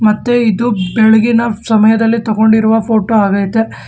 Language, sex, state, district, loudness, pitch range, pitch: Kannada, male, Karnataka, Bangalore, -11 LUFS, 215-225 Hz, 220 Hz